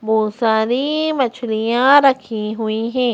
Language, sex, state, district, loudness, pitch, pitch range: Hindi, female, Madhya Pradesh, Bhopal, -17 LUFS, 235 Hz, 220-260 Hz